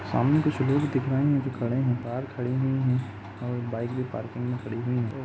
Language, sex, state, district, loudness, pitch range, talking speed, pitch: Hindi, male, Uttar Pradesh, Jalaun, -27 LUFS, 120-135 Hz, 240 wpm, 125 Hz